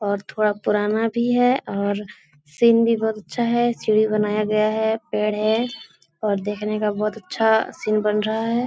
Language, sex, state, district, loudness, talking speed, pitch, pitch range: Hindi, female, Bihar, Jahanabad, -21 LUFS, 180 wpm, 215 Hz, 210-225 Hz